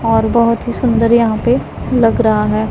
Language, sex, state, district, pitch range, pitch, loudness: Hindi, female, Punjab, Pathankot, 220-235 Hz, 230 Hz, -13 LUFS